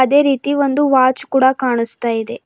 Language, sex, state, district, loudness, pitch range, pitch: Kannada, female, Karnataka, Bidar, -15 LUFS, 245-280 Hz, 260 Hz